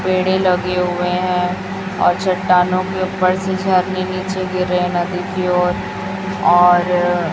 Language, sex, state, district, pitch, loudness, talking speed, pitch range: Hindi, female, Chhattisgarh, Raipur, 180 Hz, -17 LUFS, 145 wpm, 180-185 Hz